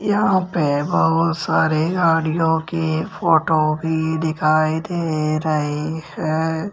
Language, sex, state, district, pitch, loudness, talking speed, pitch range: Hindi, male, Rajasthan, Jaipur, 160 Hz, -19 LUFS, 105 wpm, 155-165 Hz